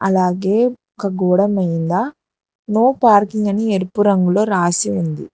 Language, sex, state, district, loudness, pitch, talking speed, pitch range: Telugu, female, Telangana, Hyderabad, -16 LUFS, 200 Hz, 125 wpm, 180-215 Hz